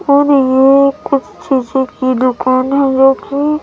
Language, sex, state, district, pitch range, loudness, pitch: Hindi, female, Chhattisgarh, Raipur, 260-280 Hz, -12 LUFS, 270 Hz